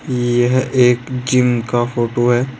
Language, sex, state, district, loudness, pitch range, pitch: Hindi, male, Uttar Pradesh, Saharanpur, -16 LUFS, 120-125 Hz, 125 Hz